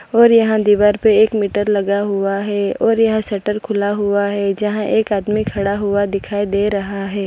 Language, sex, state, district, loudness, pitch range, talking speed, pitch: Hindi, female, Gujarat, Valsad, -16 LUFS, 200-215 Hz, 200 wpm, 205 Hz